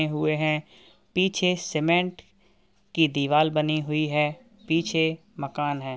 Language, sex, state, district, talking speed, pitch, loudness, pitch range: Hindi, female, Uttar Pradesh, Varanasi, 140 wpm, 155 Hz, -25 LUFS, 150-170 Hz